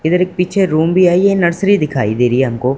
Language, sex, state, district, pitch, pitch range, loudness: Hindi, male, Punjab, Fazilka, 170 Hz, 130-185 Hz, -13 LUFS